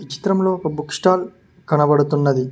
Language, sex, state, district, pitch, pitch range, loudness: Telugu, male, Telangana, Mahabubabad, 150 Hz, 145-185 Hz, -18 LUFS